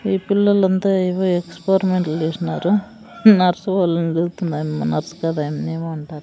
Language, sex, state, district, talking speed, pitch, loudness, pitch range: Telugu, female, Andhra Pradesh, Sri Satya Sai, 115 wpm, 180 Hz, -19 LUFS, 165-195 Hz